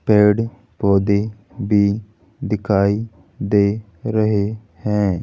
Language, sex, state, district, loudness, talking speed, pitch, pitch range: Hindi, male, Rajasthan, Jaipur, -19 LUFS, 80 wpm, 105 Hz, 100-110 Hz